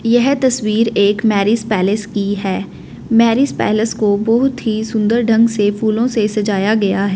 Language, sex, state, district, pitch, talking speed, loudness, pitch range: Hindi, female, Punjab, Fazilka, 215 Hz, 170 wpm, -15 LUFS, 205-230 Hz